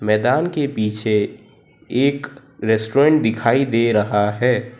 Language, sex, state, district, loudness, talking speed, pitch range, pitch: Hindi, male, Gujarat, Valsad, -18 LUFS, 110 wpm, 110-140 Hz, 120 Hz